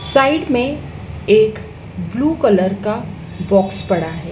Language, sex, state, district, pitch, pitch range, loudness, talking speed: Hindi, female, Madhya Pradesh, Dhar, 215 Hz, 190-285 Hz, -16 LUFS, 125 wpm